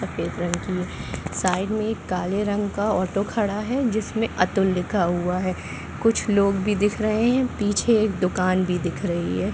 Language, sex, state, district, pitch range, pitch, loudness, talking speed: Hindi, female, Chhattisgarh, Bilaspur, 180-215 Hz, 200 Hz, -23 LUFS, 190 wpm